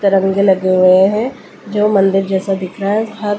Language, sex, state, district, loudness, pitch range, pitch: Hindi, female, Delhi, New Delhi, -14 LUFS, 190-205 Hz, 195 Hz